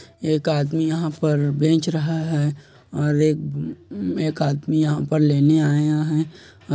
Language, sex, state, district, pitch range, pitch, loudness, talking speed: Hindi, male, Chhattisgarh, Kabirdham, 145-160 Hz, 155 Hz, -21 LUFS, 150 wpm